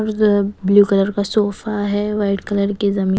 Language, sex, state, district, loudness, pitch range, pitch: Hindi, female, Bihar, West Champaran, -17 LUFS, 200-210 Hz, 205 Hz